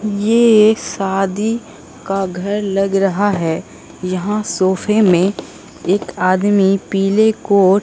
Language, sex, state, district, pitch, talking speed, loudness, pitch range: Hindi, female, Bihar, Katihar, 195 Hz, 125 wpm, -15 LUFS, 190-210 Hz